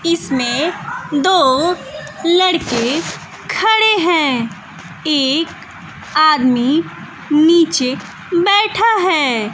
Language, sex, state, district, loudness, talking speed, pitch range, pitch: Hindi, female, Bihar, West Champaran, -14 LUFS, 65 wpm, 265-355 Hz, 320 Hz